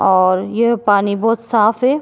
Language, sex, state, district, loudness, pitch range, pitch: Hindi, female, Goa, North and South Goa, -15 LUFS, 200-235 Hz, 215 Hz